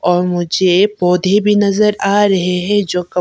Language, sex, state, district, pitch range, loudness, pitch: Hindi, female, Arunachal Pradesh, Papum Pare, 180-205 Hz, -13 LUFS, 190 Hz